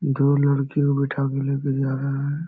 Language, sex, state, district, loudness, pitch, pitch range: Hindi, male, Bihar, Jamui, -22 LUFS, 140 Hz, 135-140 Hz